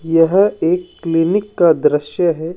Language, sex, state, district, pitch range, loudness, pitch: Hindi, male, Rajasthan, Jaipur, 165-180 Hz, -15 LUFS, 165 Hz